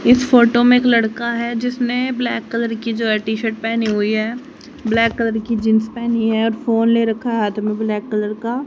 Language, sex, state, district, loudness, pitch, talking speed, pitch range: Hindi, female, Haryana, Jhajjar, -17 LUFS, 230 Hz, 220 wpm, 220-240 Hz